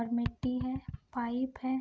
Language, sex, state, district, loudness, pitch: Hindi, female, Bihar, Sitamarhi, -35 LUFS, 235 Hz